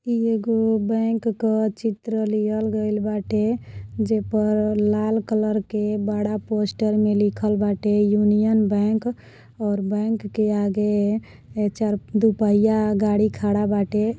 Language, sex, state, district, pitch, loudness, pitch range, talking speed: Bhojpuri, female, Uttar Pradesh, Deoria, 215 Hz, -22 LUFS, 210-220 Hz, 125 wpm